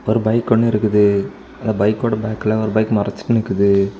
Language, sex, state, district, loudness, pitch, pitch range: Tamil, male, Tamil Nadu, Kanyakumari, -17 LUFS, 110 Hz, 100-110 Hz